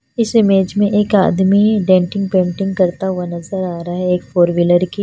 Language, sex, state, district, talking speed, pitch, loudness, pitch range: Hindi, female, Punjab, Fazilka, 215 wpm, 190 Hz, -15 LUFS, 175-200 Hz